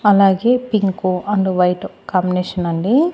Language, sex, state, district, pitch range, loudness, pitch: Telugu, female, Andhra Pradesh, Annamaya, 180-205 Hz, -17 LUFS, 190 Hz